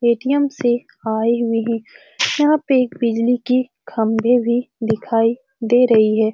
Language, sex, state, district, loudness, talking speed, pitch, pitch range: Hindi, female, Bihar, Saran, -18 LUFS, 150 wpm, 235 Hz, 225-250 Hz